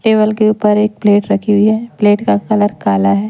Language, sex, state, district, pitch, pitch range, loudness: Hindi, female, Madhya Pradesh, Umaria, 210 Hz, 205-215 Hz, -13 LUFS